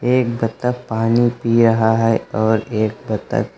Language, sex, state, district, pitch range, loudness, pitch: Hindi, male, Uttar Pradesh, Lucknow, 110-120 Hz, -18 LUFS, 115 Hz